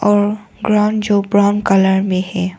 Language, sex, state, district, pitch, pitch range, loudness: Hindi, female, Arunachal Pradesh, Longding, 205 Hz, 190-210 Hz, -15 LUFS